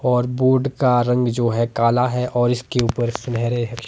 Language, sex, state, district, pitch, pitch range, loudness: Hindi, male, Himachal Pradesh, Shimla, 120 Hz, 120-125 Hz, -19 LUFS